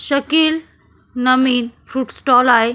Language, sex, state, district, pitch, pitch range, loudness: Marathi, female, Maharashtra, Solapur, 255 Hz, 245-280 Hz, -16 LUFS